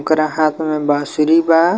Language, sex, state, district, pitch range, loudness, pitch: Bhojpuri, male, Bihar, Muzaffarpur, 150-165 Hz, -15 LUFS, 155 Hz